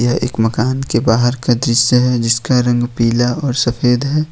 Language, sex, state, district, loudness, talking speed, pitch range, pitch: Hindi, male, Jharkhand, Ranchi, -15 LUFS, 195 wpm, 120-125 Hz, 120 Hz